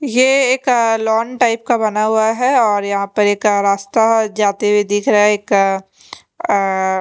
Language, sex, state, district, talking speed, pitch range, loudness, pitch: Hindi, female, Chandigarh, Chandigarh, 180 wpm, 200-230 Hz, -15 LUFS, 215 Hz